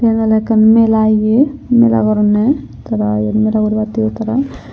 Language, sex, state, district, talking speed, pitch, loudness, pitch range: Chakma, female, Tripura, Unakoti, 150 wpm, 220 Hz, -13 LUFS, 215-230 Hz